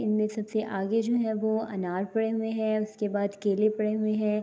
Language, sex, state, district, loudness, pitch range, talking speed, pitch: Urdu, female, Andhra Pradesh, Anantapur, -28 LUFS, 210-220 Hz, 215 wpm, 215 Hz